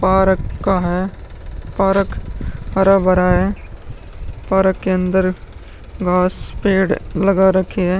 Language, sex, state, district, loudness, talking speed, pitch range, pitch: Hindi, male, Uttar Pradesh, Muzaffarnagar, -16 LUFS, 110 wpm, 180-190 Hz, 190 Hz